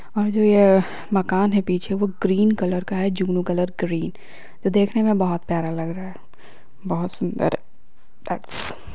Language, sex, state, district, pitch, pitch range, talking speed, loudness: Hindi, female, Uttar Pradesh, Hamirpur, 190 Hz, 180-200 Hz, 175 wpm, -21 LUFS